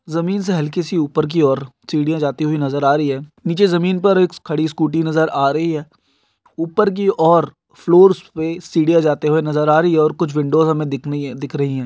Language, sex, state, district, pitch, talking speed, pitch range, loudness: Hindi, male, Andhra Pradesh, Guntur, 155 Hz, 225 wpm, 145-170 Hz, -17 LUFS